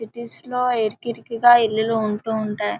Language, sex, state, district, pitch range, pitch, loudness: Telugu, female, Andhra Pradesh, Srikakulam, 215-235 Hz, 225 Hz, -20 LUFS